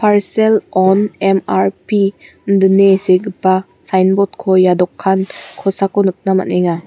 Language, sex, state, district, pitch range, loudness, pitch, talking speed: Garo, female, Meghalaya, West Garo Hills, 185-200 Hz, -14 LUFS, 195 Hz, 95 wpm